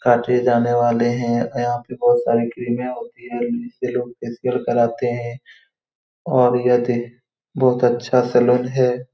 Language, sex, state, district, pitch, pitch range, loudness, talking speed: Hindi, male, Bihar, Saran, 125 Hz, 120-125 Hz, -19 LUFS, 145 wpm